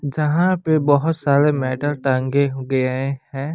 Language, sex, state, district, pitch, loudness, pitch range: Hindi, male, Bihar, West Champaran, 140 Hz, -19 LUFS, 135-150 Hz